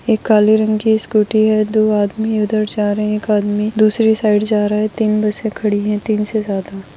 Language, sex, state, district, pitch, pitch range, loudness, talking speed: Hindi, female, Goa, North and South Goa, 215 Hz, 210-215 Hz, -15 LUFS, 225 wpm